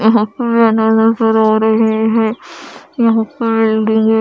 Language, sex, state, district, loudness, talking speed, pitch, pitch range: Hindi, female, Odisha, Khordha, -13 LUFS, 140 wpm, 220 Hz, 220-225 Hz